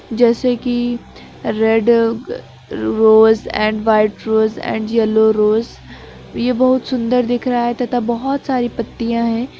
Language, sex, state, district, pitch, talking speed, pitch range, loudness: Hindi, female, Uttar Pradesh, Lucknow, 235 Hz, 135 wpm, 220-245 Hz, -16 LUFS